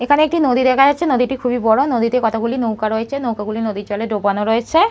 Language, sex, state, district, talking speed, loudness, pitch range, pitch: Bengali, female, West Bengal, North 24 Parganas, 220 wpm, -17 LUFS, 220-265 Hz, 240 Hz